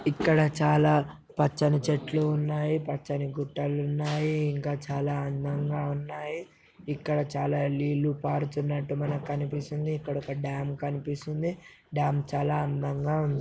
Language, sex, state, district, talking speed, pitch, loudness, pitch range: Telugu, male, Telangana, Nalgonda, 115 wpm, 145 Hz, -29 LUFS, 145-150 Hz